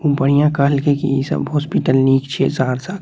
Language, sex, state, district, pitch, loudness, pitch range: Maithili, male, Bihar, Saharsa, 140 Hz, -16 LUFS, 135-145 Hz